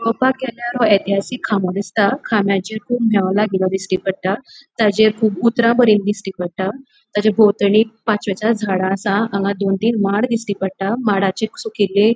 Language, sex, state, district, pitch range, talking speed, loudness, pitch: Konkani, female, Goa, North and South Goa, 195-225 Hz, 160 wpm, -17 LUFS, 210 Hz